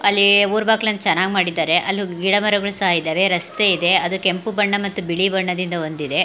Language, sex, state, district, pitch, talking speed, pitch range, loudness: Kannada, female, Karnataka, Mysore, 190 Hz, 180 wpm, 175-200 Hz, -17 LUFS